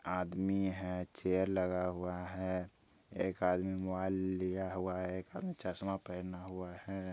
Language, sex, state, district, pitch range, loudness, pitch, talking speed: Hindi, male, Bihar, Bhagalpur, 90-95 Hz, -38 LUFS, 95 Hz, 150 wpm